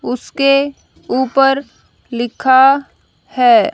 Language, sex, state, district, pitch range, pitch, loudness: Hindi, female, Haryana, Rohtak, 255-275 Hz, 270 Hz, -14 LUFS